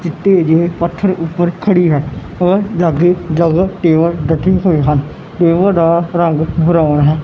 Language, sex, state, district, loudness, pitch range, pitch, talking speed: Punjabi, male, Punjab, Kapurthala, -13 LUFS, 160-180 Hz, 170 Hz, 115 wpm